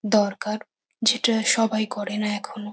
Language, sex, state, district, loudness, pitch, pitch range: Bengali, female, West Bengal, North 24 Parganas, -23 LUFS, 210 Hz, 210-225 Hz